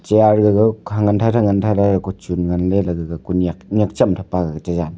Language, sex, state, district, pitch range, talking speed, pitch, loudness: Wancho, male, Arunachal Pradesh, Longding, 90-105 Hz, 170 wpm, 95 Hz, -17 LUFS